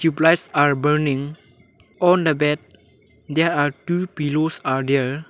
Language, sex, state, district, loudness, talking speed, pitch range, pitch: English, male, Arunachal Pradesh, Lower Dibang Valley, -20 LUFS, 145 wpm, 135-160 Hz, 145 Hz